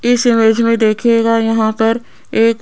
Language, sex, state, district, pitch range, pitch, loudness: Hindi, female, Rajasthan, Jaipur, 225-230 Hz, 230 Hz, -13 LUFS